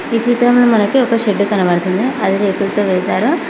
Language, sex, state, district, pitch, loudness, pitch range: Telugu, female, Telangana, Mahabubabad, 210 Hz, -14 LUFS, 195-245 Hz